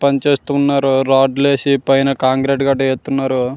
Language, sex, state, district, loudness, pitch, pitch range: Telugu, male, Andhra Pradesh, Srikakulam, -15 LUFS, 135 Hz, 135-140 Hz